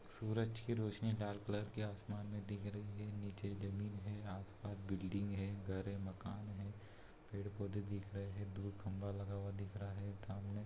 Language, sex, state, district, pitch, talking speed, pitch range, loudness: Hindi, male, Bihar, Muzaffarpur, 100 Hz, 190 wpm, 100-105 Hz, -46 LUFS